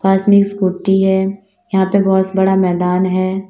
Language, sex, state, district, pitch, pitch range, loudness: Hindi, female, Uttar Pradesh, Lalitpur, 190 Hz, 185-195 Hz, -14 LUFS